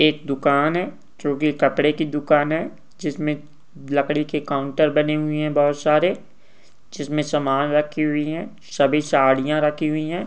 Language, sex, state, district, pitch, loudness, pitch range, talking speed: Hindi, male, Uttarakhand, Tehri Garhwal, 150 Hz, -21 LUFS, 145-155 Hz, 165 wpm